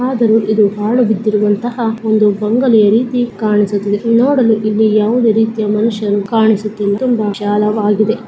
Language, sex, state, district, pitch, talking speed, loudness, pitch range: Kannada, female, Karnataka, Bijapur, 215 Hz, 125 wpm, -13 LUFS, 210-230 Hz